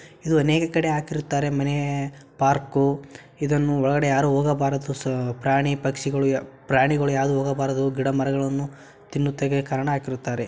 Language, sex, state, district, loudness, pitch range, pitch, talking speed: Kannada, male, Karnataka, Shimoga, -23 LUFS, 135-145 Hz, 140 Hz, 120 wpm